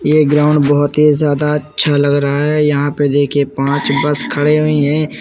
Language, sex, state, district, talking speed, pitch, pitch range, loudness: Hindi, male, Uttar Pradesh, Muzaffarnagar, 195 wpm, 145 Hz, 145-150 Hz, -13 LUFS